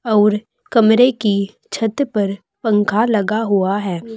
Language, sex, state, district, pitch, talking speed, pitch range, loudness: Hindi, female, Uttar Pradesh, Saharanpur, 215 Hz, 130 wpm, 200-225 Hz, -17 LUFS